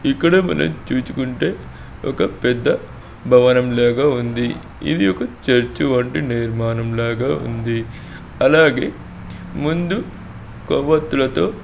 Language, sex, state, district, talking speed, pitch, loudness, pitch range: Telugu, male, Andhra Pradesh, Srikakulam, 95 wpm, 120 Hz, -18 LUFS, 115-135 Hz